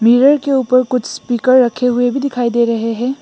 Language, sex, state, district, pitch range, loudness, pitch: Hindi, female, Assam, Hailakandi, 240-260 Hz, -14 LUFS, 250 Hz